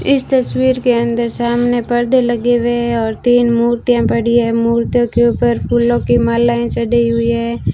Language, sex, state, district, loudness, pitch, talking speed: Hindi, female, Rajasthan, Bikaner, -14 LUFS, 235 Hz, 170 wpm